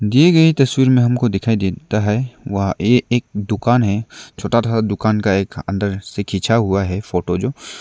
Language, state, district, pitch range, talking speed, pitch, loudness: Hindi, Arunachal Pradesh, Lower Dibang Valley, 100-120 Hz, 200 wpm, 110 Hz, -17 LUFS